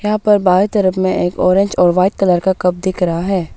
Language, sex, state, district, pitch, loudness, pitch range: Hindi, female, Arunachal Pradesh, Papum Pare, 185 Hz, -14 LUFS, 180-195 Hz